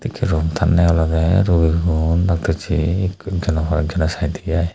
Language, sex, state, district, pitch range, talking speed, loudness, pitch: Chakma, male, Tripura, Unakoti, 80-90 Hz, 150 wpm, -18 LUFS, 85 Hz